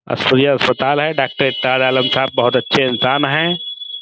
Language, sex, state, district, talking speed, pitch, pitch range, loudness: Hindi, male, Uttar Pradesh, Budaun, 135 wpm, 130 Hz, 130-145 Hz, -15 LUFS